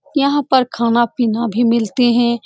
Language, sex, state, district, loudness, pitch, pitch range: Hindi, female, Bihar, Saran, -15 LUFS, 240 Hz, 235-255 Hz